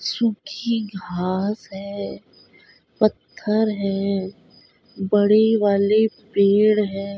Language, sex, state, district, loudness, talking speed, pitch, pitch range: Hindi, female, Uttar Pradesh, Budaun, -21 LUFS, 85 wpm, 205 Hz, 195-220 Hz